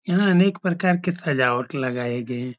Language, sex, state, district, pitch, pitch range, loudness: Hindi, male, Uttar Pradesh, Etah, 150 Hz, 125-180 Hz, -22 LUFS